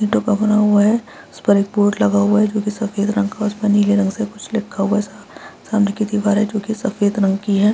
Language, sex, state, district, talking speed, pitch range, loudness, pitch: Hindi, female, Bihar, Araria, 280 wpm, 205-215 Hz, -17 LUFS, 210 Hz